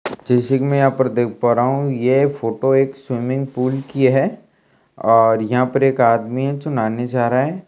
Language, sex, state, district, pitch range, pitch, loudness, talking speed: Hindi, male, Bihar, Kaimur, 120-135 Hz, 130 Hz, -17 LUFS, 210 wpm